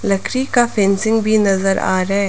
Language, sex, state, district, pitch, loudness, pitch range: Hindi, female, Arunachal Pradesh, Lower Dibang Valley, 200 Hz, -16 LUFS, 195-220 Hz